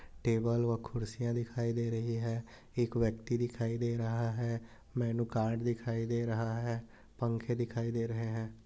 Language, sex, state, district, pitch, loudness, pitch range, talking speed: Hindi, male, Uttar Pradesh, Budaun, 115 Hz, -35 LUFS, 115-120 Hz, 165 wpm